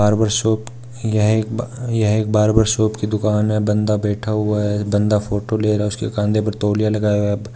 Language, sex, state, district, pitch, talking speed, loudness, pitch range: Hindi, male, Rajasthan, Churu, 105 Hz, 215 wpm, -18 LUFS, 105-110 Hz